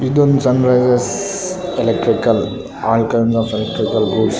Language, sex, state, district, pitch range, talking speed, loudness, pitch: Kannada, male, Karnataka, Raichur, 115-145 Hz, 120 wpm, -16 LUFS, 125 Hz